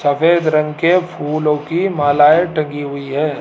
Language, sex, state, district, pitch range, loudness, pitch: Hindi, male, Rajasthan, Jaipur, 145-165 Hz, -15 LUFS, 150 Hz